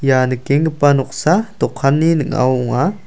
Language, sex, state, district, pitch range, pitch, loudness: Garo, male, Meghalaya, South Garo Hills, 130-160 Hz, 140 Hz, -16 LUFS